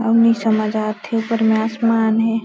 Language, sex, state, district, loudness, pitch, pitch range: Hindi, female, Chhattisgarh, Balrampur, -17 LUFS, 225 Hz, 220-230 Hz